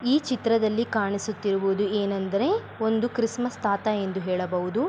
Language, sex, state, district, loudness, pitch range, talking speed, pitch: Kannada, female, Karnataka, Bellary, -26 LUFS, 195-235 Hz, 120 wpm, 215 Hz